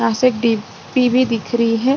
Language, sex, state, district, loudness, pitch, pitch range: Hindi, female, Chhattisgarh, Rajnandgaon, -17 LUFS, 235 Hz, 230-255 Hz